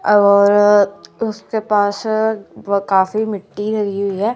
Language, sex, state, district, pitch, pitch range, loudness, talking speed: Hindi, female, Punjab, Kapurthala, 205 Hz, 200-215 Hz, -16 LUFS, 135 wpm